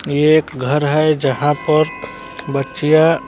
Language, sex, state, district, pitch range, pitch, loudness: Hindi, male, Bihar, Kaimur, 145-155 Hz, 150 Hz, -16 LUFS